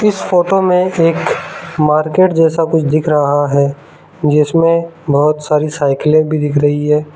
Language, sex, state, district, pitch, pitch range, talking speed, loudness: Hindi, male, Arunachal Pradesh, Lower Dibang Valley, 155 Hz, 150-165 Hz, 150 wpm, -13 LUFS